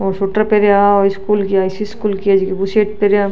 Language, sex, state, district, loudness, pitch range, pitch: Marwari, female, Rajasthan, Nagaur, -14 LUFS, 195-210 Hz, 200 Hz